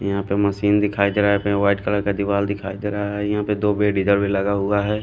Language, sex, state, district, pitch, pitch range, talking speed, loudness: Hindi, male, Punjab, Fazilka, 100 Hz, 100-105 Hz, 310 wpm, -20 LUFS